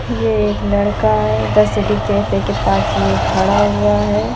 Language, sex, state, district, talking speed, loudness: Hindi, female, Uttar Pradesh, Jalaun, 180 wpm, -15 LUFS